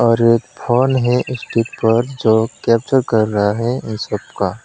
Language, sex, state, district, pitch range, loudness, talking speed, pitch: Hindi, male, West Bengal, Alipurduar, 110-125 Hz, -17 LUFS, 180 wpm, 115 Hz